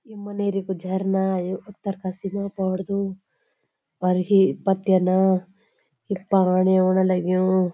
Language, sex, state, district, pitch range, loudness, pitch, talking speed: Garhwali, female, Uttarakhand, Uttarkashi, 185-195 Hz, -22 LUFS, 190 Hz, 115 wpm